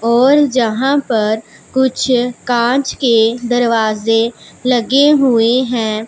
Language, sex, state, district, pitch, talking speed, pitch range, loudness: Hindi, female, Punjab, Pathankot, 240 Hz, 100 wpm, 230-260 Hz, -14 LUFS